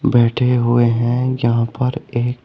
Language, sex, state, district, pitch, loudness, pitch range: Hindi, male, Uttar Pradesh, Shamli, 120 Hz, -17 LUFS, 120-125 Hz